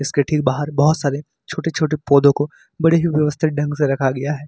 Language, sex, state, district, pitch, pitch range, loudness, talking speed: Hindi, male, Uttar Pradesh, Lucknow, 145 Hz, 140-155 Hz, -18 LUFS, 215 wpm